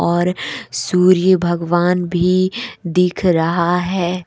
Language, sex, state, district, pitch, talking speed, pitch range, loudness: Hindi, female, Jharkhand, Deoghar, 180 Hz, 100 wpm, 175-185 Hz, -16 LUFS